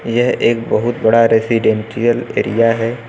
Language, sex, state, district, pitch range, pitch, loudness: Hindi, male, Uttar Pradesh, Lucknow, 115-120 Hz, 115 Hz, -15 LUFS